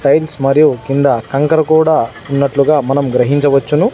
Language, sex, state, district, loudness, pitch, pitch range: Telugu, male, Andhra Pradesh, Sri Satya Sai, -12 LUFS, 140 Hz, 135-155 Hz